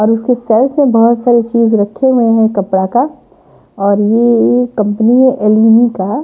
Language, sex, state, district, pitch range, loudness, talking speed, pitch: Hindi, female, Punjab, Pathankot, 210-245 Hz, -11 LUFS, 185 wpm, 230 Hz